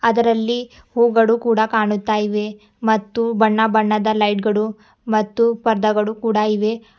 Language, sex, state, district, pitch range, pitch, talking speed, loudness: Kannada, female, Karnataka, Bidar, 215-230 Hz, 220 Hz, 105 wpm, -18 LUFS